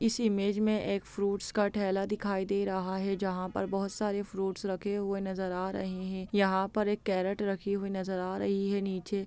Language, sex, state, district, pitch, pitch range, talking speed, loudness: Hindi, female, Bihar, Lakhisarai, 195 Hz, 190-205 Hz, 215 wpm, -32 LUFS